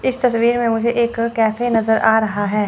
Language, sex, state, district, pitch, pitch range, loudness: Hindi, female, Chandigarh, Chandigarh, 230 Hz, 220-240 Hz, -17 LUFS